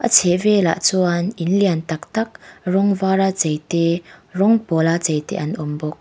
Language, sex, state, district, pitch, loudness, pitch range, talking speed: Mizo, female, Mizoram, Aizawl, 180 Hz, -18 LUFS, 165-200 Hz, 190 wpm